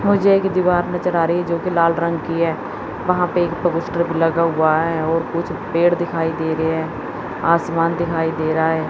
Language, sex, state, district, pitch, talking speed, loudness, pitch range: Hindi, female, Chandigarh, Chandigarh, 170 Hz, 195 wpm, -19 LUFS, 165-175 Hz